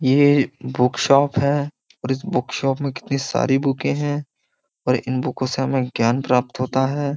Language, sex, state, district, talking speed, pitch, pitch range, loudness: Hindi, male, Uttar Pradesh, Jyotiba Phule Nagar, 165 wpm, 135 Hz, 130-140 Hz, -20 LUFS